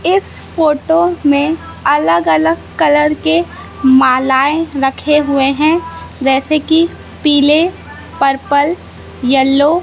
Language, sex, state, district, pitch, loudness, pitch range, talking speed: Hindi, female, Madhya Pradesh, Katni, 295 Hz, -13 LUFS, 270-320 Hz, 105 wpm